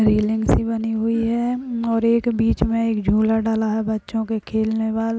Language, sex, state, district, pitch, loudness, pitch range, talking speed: Hindi, female, Uttar Pradesh, Etah, 225 Hz, -20 LUFS, 220-230 Hz, 210 wpm